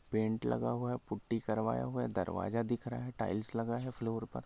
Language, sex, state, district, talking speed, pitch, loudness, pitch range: Hindi, male, Chhattisgarh, Sarguja, 190 wpm, 110 Hz, -37 LUFS, 90-115 Hz